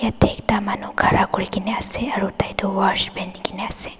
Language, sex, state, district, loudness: Nagamese, female, Nagaland, Dimapur, -21 LUFS